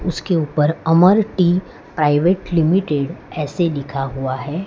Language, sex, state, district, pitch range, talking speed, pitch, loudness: Hindi, male, Gujarat, Valsad, 145-180 Hz, 130 wpm, 160 Hz, -18 LUFS